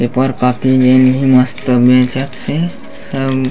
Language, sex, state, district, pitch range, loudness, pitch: Chhattisgarhi, male, Chhattisgarh, Bastar, 125-135 Hz, -12 LUFS, 130 Hz